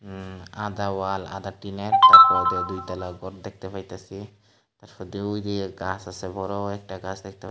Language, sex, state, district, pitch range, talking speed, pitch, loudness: Bengali, male, Tripura, Unakoti, 95-105 Hz, 170 wpm, 95 Hz, -20 LUFS